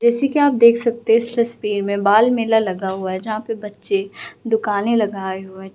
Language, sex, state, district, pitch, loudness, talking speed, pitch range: Hindi, female, Bihar, Gaya, 215 Hz, -18 LUFS, 220 wpm, 200-235 Hz